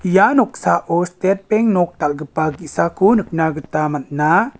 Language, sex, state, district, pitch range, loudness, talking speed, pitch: Garo, male, Meghalaya, West Garo Hills, 155-200 Hz, -17 LUFS, 130 wpm, 175 Hz